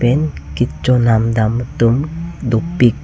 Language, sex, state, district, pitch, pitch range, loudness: Karbi, male, Assam, Karbi Anglong, 120 Hz, 115-145 Hz, -16 LUFS